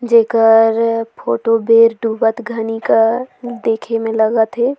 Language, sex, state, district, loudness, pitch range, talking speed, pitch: Surgujia, female, Chhattisgarh, Sarguja, -14 LUFS, 225-235 Hz, 125 wpm, 230 Hz